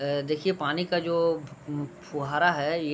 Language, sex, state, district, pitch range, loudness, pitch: Hindi, male, Bihar, Gopalganj, 145-170 Hz, -28 LUFS, 155 Hz